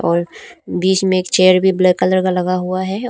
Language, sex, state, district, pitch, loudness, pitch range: Hindi, female, Arunachal Pradesh, Papum Pare, 185 Hz, -15 LUFS, 185-190 Hz